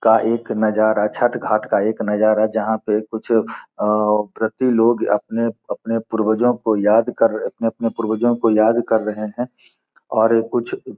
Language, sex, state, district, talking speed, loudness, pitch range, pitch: Hindi, male, Bihar, Gopalganj, 155 wpm, -19 LUFS, 110-115 Hz, 110 Hz